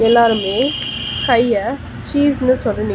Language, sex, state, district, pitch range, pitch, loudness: Tamil, female, Tamil Nadu, Chennai, 220-260 Hz, 235 Hz, -16 LUFS